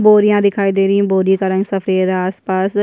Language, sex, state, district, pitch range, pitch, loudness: Hindi, female, Chhattisgarh, Jashpur, 190-200 Hz, 195 Hz, -15 LUFS